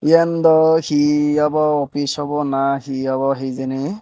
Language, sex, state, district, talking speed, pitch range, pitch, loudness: Chakma, male, Tripura, Dhalai, 150 wpm, 135-155 Hz, 145 Hz, -17 LUFS